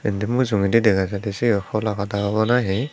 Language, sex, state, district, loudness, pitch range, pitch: Chakma, male, Tripura, Dhalai, -21 LUFS, 100-115 Hz, 105 Hz